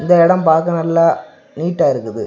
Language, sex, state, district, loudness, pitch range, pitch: Tamil, male, Tamil Nadu, Kanyakumari, -14 LUFS, 165-175 Hz, 170 Hz